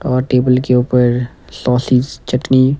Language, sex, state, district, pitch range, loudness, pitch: Hindi, male, Himachal Pradesh, Shimla, 125-130 Hz, -14 LUFS, 125 Hz